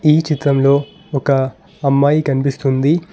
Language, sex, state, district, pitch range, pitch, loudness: Telugu, male, Telangana, Hyderabad, 135-150 Hz, 140 Hz, -16 LUFS